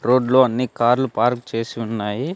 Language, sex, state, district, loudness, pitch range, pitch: Telugu, male, Andhra Pradesh, Sri Satya Sai, -19 LUFS, 115-130 Hz, 120 Hz